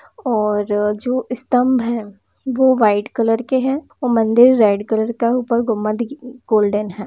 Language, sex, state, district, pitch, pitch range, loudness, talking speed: Hindi, female, Bihar, East Champaran, 235 Hz, 215-250 Hz, -17 LUFS, 170 wpm